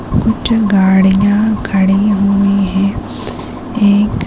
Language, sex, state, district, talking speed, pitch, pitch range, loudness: Hindi, female, Maharashtra, Sindhudurg, 85 wpm, 200 Hz, 195-210 Hz, -12 LUFS